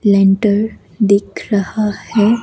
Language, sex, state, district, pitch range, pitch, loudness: Hindi, female, Himachal Pradesh, Shimla, 200-215 Hz, 205 Hz, -15 LUFS